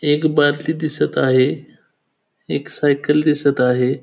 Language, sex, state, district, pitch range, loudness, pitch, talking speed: Marathi, male, Maharashtra, Pune, 130-150 Hz, -17 LUFS, 145 Hz, 120 wpm